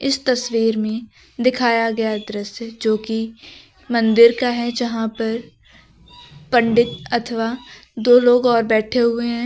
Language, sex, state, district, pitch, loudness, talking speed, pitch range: Hindi, female, Uttar Pradesh, Lucknow, 235 Hz, -18 LUFS, 135 wpm, 225-240 Hz